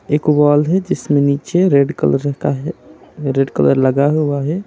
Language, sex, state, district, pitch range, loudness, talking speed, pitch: Hindi, male, West Bengal, Alipurduar, 140-155 Hz, -15 LUFS, 180 wpm, 145 Hz